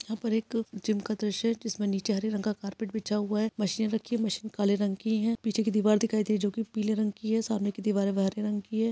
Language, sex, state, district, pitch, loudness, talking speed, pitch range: Hindi, female, Bihar, Kishanganj, 215 Hz, -29 LUFS, 290 wpm, 205-220 Hz